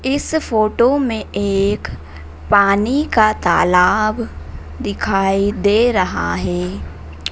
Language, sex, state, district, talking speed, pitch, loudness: Hindi, female, Madhya Pradesh, Dhar, 90 wpm, 195 Hz, -16 LUFS